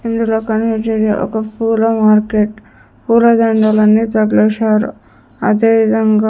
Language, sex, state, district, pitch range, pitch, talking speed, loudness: Telugu, female, Andhra Pradesh, Sri Satya Sai, 215-225 Hz, 220 Hz, 85 wpm, -13 LUFS